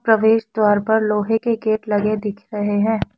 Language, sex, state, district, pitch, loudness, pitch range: Hindi, female, Assam, Kamrup Metropolitan, 215 Hz, -19 LUFS, 210-225 Hz